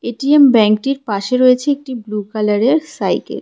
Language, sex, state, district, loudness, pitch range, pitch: Bengali, female, West Bengal, Cooch Behar, -15 LUFS, 215-275 Hz, 250 Hz